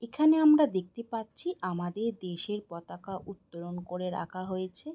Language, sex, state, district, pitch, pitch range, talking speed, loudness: Bengali, female, West Bengal, Jhargram, 190 Hz, 180-235 Hz, 135 wpm, -30 LUFS